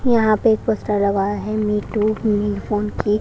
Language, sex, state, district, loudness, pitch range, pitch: Hindi, female, Maharashtra, Washim, -19 LUFS, 205-215 Hz, 210 Hz